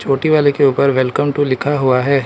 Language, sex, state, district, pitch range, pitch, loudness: Hindi, male, Arunachal Pradesh, Lower Dibang Valley, 130-145 Hz, 140 Hz, -14 LUFS